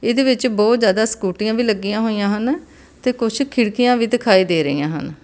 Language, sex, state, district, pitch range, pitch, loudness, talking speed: Punjabi, female, Karnataka, Bangalore, 200-245 Hz, 225 Hz, -18 LUFS, 195 wpm